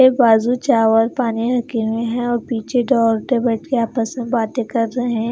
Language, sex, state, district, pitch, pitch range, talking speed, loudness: Hindi, female, Himachal Pradesh, Shimla, 235 Hz, 225-245 Hz, 190 wpm, -18 LUFS